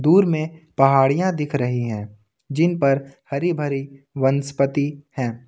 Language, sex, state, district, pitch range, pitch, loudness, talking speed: Hindi, male, Jharkhand, Ranchi, 135-155 Hz, 140 Hz, -21 LUFS, 130 wpm